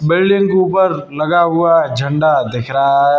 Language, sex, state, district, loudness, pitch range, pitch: Hindi, male, Uttar Pradesh, Lucknow, -14 LUFS, 140-180 Hz, 155 Hz